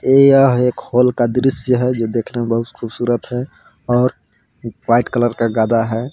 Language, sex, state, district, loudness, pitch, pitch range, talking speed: Hindi, male, Jharkhand, Palamu, -16 LUFS, 120 Hz, 115-125 Hz, 185 wpm